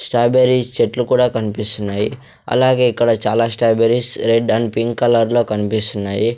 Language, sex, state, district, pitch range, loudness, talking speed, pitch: Telugu, male, Andhra Pradesh, Sri Satya Sai, 110-120 Hz, -16 LUFS, 120 wpm, 115 Hz